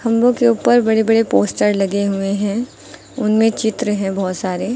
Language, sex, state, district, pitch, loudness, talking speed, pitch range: Hindi, female, Uttar Pradesh, Lucknow, 215 Hz, -16 LUFS, 175 wpm, 195-230 Hz